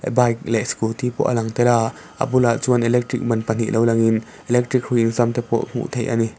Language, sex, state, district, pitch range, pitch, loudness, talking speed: Mizo, male, Mizoram, Aizawl, 115-125 Hz, 120 Hz, -20 LUFS, 245 wpm